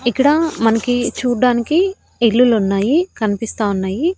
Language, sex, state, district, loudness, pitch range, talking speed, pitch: Telugu, female, Andhra Pradesh, Annamaya, -16 LUFS, 225-290 Hz, 85 wpm, 240 Hz